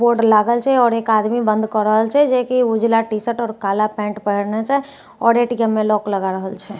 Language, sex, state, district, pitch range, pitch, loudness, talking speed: Maithili, female, Bihar, Katihar, 210-235 Hz, 220 Hz, -17 LUFS, 230 wpm